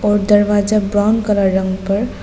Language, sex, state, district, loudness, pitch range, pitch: Hindi, female, Arunachal Pradesh, Papum Pare, -15 LUFS, 195-210 Hz, 205 Hz